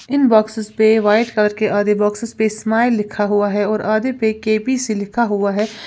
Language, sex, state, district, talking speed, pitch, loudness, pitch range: Hindi, female, Uttar Pradesh, Lalitpur, 225 wpm, 215 Hz, -17 LUFS, 210-225 Hz